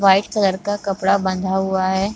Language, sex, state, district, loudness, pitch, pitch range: Hindi, female, Jharkhand, Sahebganj, -19 LUFS, 195 Hz, 190-200 Hz